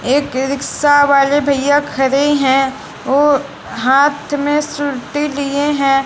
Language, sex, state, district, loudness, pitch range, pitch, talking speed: Hindi, female, Bihar, West Champaran, -14 LUFS, 270-290 Hz, 280 Hz, 110 wpm